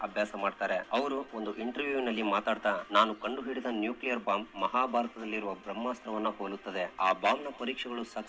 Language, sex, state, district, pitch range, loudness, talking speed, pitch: Kannada, male, Karnataka, Bijapur, 105-125 Hz, -32 LUFS, 115 wpm, 110 Hz